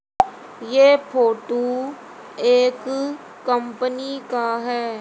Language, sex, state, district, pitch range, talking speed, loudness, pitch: Hindi, female, Haryana, Charkhi Dadri, 240-275 Hz, 70 wpm, -20 LUFS, 255 Hz